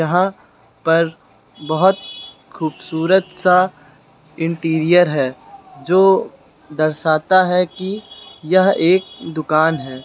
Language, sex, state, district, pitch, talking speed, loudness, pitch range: Hindi, male, Uttar Pradesh, Lucknow, 165 Hz, 90 wpm, -17 LUFS, 155-185 Hz